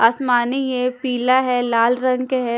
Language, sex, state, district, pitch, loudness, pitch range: Hindi, female, Punjab, Kapurthala, 250 Hz, -18 LUFS, 245-255 Hz